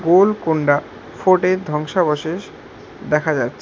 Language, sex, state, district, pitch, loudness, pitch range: Bengali, male, West Bengal, Alipurduar, 170 Hz, -18 LUFS, 155-185 Hz